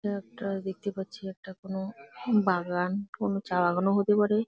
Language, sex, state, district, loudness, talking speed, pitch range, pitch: Bengali, female, West Bengal, Jalpaiguri, -29 LUFS, 175 wpm, 190-205 Hz, 195 Hz